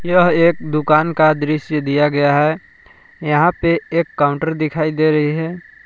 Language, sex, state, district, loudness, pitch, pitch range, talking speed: Hindi, male, Jharkhand, Palamu, -16 LUFS, 155 Hz, 150-170 Hz, 165 wpm